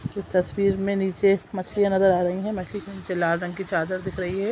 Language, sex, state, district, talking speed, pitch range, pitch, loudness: Hindi, female, Chhattisgarh, Sukma, 250 wpm, 185-200 Hz, 190 Hz, -24 LUFS